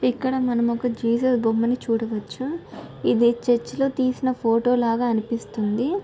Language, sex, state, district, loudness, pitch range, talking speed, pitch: Telugu, female, Andhra Pradesh, Guntur, -22 LUFS, 230-255 Hz, 130 wpm, 240 Hz